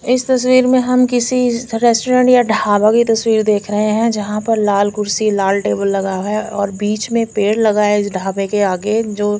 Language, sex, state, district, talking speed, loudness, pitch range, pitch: Hindi, female, Chandigarh, Chandigarh, 210 wpm, -15 LUFS, 205-235 Hz, 215 Hz